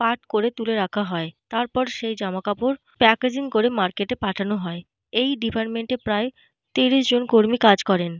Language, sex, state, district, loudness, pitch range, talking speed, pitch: Bengali, female, Jharkhand, Jamtara, -22 LUFS, 195-245 Hz, 170 wpm, 225 Hz